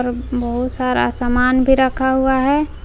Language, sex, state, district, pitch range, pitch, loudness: Hindi, female, Jharkhand, Palamu, 245-265 Hz, 255 Hz, -17 LUFS